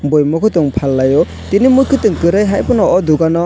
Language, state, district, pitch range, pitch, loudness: Kokborok, Tripura, West Tripura, 150-210 Hz, 165 Hz, -12 LUFS